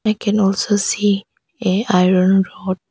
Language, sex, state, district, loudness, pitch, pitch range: English, female, Arunachal Pradesh, Longding, -17 LUFS, 200 Hz, 190-210 Hz